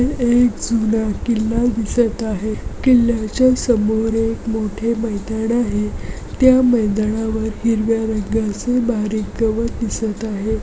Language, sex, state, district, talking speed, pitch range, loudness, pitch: Marathi, female, Maharashtra, Aurangabad, 115 wpm, 215-235 Hz, -18 LUFS, 225 Hz